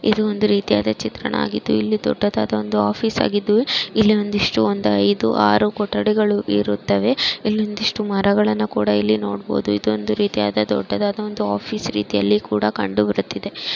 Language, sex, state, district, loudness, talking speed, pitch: Kannada, male, Karnataka, Mysore, -19 LUFS, 130 wpm, 105 Hz